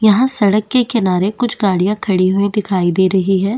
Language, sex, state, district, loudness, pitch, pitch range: Hindi, female, Chhattisgarh, Bastar, -15 LUFS, 200 Hz, 190-215 Hz